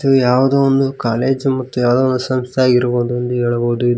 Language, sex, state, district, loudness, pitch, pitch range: Kannada, male, Karnataka, Koppal, -15 LUFS, 125 Hz, 120-135 Hz